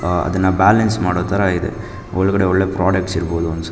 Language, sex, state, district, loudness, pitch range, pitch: Kannada, male, Karnataka, Mysore, -17 LUFS, 90-100 Hz, 95 Hz